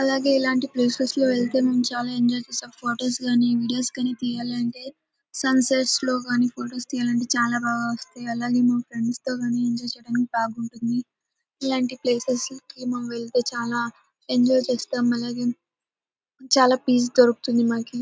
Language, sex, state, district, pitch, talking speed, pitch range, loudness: Telugu, female, Karnataka, Bellary, 245 Hz, 145 wpm, 240-255 Hz, -23 LUFS